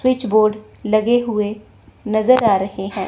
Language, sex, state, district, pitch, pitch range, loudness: Hindi, female, Chandigarh, Chandigarh, 215 Hz, 210-240 Hz, -17 LUFS